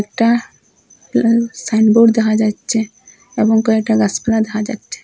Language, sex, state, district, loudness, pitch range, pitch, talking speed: Bengali, female, Assam, Hailakandi, -15 LUFS, 215-230 Hz, 220 Hz, 120 wpm